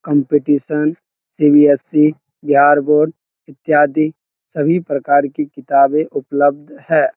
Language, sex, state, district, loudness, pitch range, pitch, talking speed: Hindi, male, Bihar, Muzaffarpur, -15 LUFS, 145-155 Hz, 150 Hz, 100 wpm